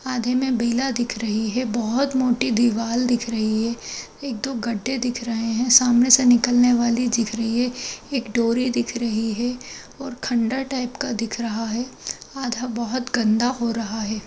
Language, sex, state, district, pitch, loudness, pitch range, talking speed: Hindi, female, Uttar Pradesh, Jalaun, 240 Hz, -22 LUFS, 230-250 Hz, 180 wpm